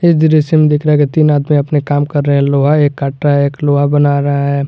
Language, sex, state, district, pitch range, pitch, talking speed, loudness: Hindi, male, Jharkhand, Garhwa, 140-150 Hz, 145 Hz, 310 wpm, -12 LUFS